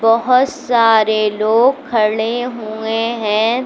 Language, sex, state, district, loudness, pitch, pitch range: Hindi, female, Uttar Pradesh, Lucknow, -15 LUFS, 225 Hz, 220-245 Hz